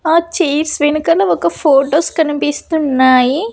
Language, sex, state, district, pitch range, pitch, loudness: Telugu, female, Andhra Pradesh, Annamaya, 275-320 Hz, 300 Hz, -13 LUFS